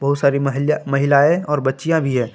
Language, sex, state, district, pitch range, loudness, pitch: Hindi, male, Jharkhand, Palamu, 140-150 Hz, -17 LUFS, 140 Hz